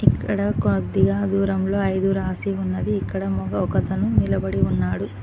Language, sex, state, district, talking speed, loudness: Telugu, female, Telangana, Mahabubabad, 135 wpm, -22 LUFS